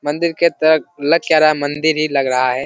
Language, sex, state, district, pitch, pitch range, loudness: Hindi, male, Bihar, Jamui, 155 Hz, 145-160 Hz, -15 LUFS